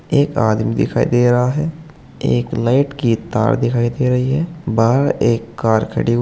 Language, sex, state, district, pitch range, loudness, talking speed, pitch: Hindi, male, Uttar Pradesh, Saharanpur, 115-140 Hz, -17 LUFS, 185 wpm, 120 Hz